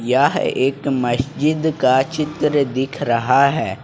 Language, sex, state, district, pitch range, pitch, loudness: Hindi, male, Jharkhand, Ranchi, 130-150 Hz, 140 Hz, -18 LUFS